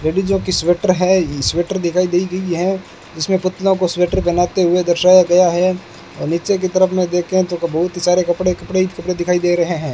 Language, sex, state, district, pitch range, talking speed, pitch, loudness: Hindi, male, Rajasthan, Bikaner, 175-185 Hz, 205 wpm, 180 Hz, -16 LUFS